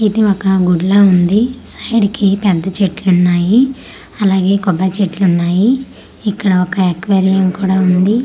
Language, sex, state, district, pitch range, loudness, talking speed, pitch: Telugu, female, Andhra Pradesh, Manyam, 185-205 Hz, -13 LUFS, 125 wpm, 195 Hz